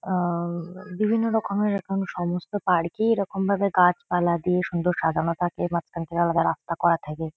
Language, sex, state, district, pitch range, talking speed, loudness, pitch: Bengali, female, West Bengal, Kolkata, 170-195 Hz, 145 wpm, -24 LUFS, 180 Hz